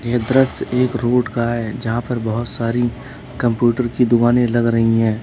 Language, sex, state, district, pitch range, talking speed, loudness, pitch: Hindi, male, Uttar Pradesh, Lalitpur, 115-125 Hz, 185 wpm, -17 LUFS, 120 Hz